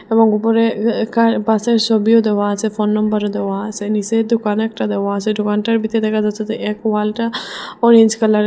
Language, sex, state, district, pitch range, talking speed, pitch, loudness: Bengali, female, Assam, Hailakandi, 210-225 Hz, 185 wpm, 220 Hz, -16 LUFS